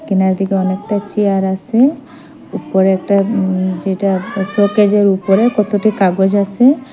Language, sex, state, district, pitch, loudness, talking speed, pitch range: Bengali, female, Assam, Hailakandi, 200 Hz, -14 LUFS, 120 wpm, 190-215 Hz